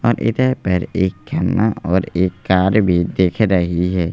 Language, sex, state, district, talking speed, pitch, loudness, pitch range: Hindi, male, Madhya Pradesh, Bhopal, 175 wpm, 95 Hz, -17 LUFS, 90-110 Hz